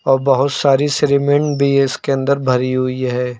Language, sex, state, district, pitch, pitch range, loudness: Hindi, male, Uttar Pradesh, Lucknow, 135 Hz, 130-140 Hz, -16 LUFS